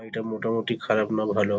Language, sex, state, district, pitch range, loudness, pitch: Bengali, male, West Bengal, Paschim Medinipur, 105-115 Hz, -26 LUFS, 110 Hz